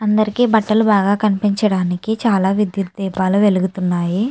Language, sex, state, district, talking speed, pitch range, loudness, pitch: Telugu, female, Andhra Pradesh, Chittoor, 110 wpm, 190-215 Hz, -16 LUFS, 200 Hz